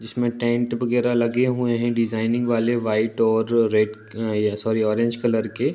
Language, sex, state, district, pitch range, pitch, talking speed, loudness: Hindi, male, Uttar Pradesh, Ghazipur, 110-120 Hz, 115 Hz, 165 wpm, -22 LUFS